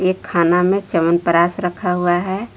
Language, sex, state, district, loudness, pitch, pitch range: Hindi, female, Jharkhand, Palamu, -17 LUFS, 180 Hz, 170-185 Hz